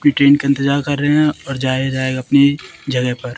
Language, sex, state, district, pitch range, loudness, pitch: Hindi, female, Madhya Pradesh, Katni, 130-145 Hz, -16 LUFS, 140 Hz